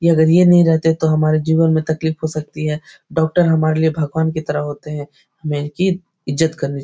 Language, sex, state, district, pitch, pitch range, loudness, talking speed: Hindi, male, Bihar, Jahanabad, 160 Hz, 150-160 Hz, -17 LUFS, 230 wpm